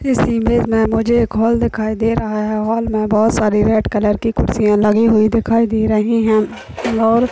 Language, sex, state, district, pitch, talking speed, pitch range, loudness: Hindi, female, Chhattisgarh, Raigarh, 220 Hz, 205 wpm, 215-230 Hz, -15 LUFS